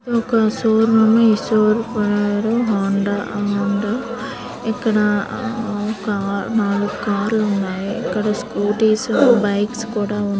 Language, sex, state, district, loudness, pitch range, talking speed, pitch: Telugu, female, Andhra Pradesh, Srikakulam, -18 LUFS, 205-225 Hz, 105 wpm, 210 Hz